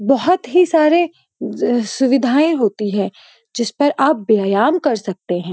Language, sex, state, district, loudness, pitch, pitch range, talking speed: Hindi, female, Uttarakhand, Uttarkashi, -16 LUFS, 255 Hz, 210-310 Hz, 140 wpm